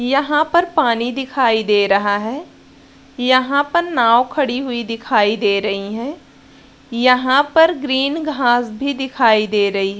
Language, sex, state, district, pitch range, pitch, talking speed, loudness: Hindi, female, Bihar, Araria, 220-280 Hz, 250 Hz, 150 wpm, -16 LUFS